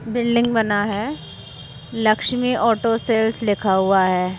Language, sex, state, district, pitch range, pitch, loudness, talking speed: Hindi, female, Uttar Pradesh, Jalaun, 205-235 Hz, 220 Hz, -19 LUFS, 125 wpm